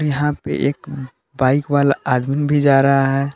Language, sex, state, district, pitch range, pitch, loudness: Hindi, male, Jharkhand, Palamu, 135-145 Hz, 140 Hz, -17 LUFS